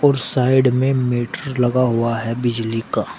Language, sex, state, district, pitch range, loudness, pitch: Hindi, male, Uttar Pradesh, Shamli, 115-130 Hz, -18 LUFS, 125 Hz